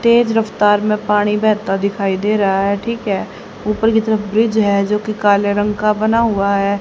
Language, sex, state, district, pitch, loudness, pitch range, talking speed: Hindi, female, Haryana, Charkhi Dadri, 210 Hz, -16 LUFS, 200-220 Hz, 210 wpm